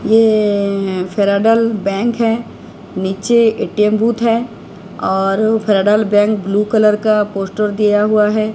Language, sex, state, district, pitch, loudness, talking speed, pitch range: Hindi, female, Odisha, Sambalpur, 210 Hz, -14 LUFS, 125 wpm, 200-220 Hz